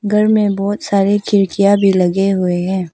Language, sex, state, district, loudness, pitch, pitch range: Hindi, female, Arunachal Pradesh, Papum Pare, -14 LUFS, 200 Hz, 190-205 Hz